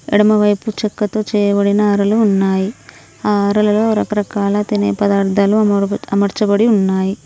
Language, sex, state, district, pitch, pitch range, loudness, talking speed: Telugu, female, Telangana, Mahabubabad, 205 Hz, 200-210 Hz, -15 LUFS, 105 wpm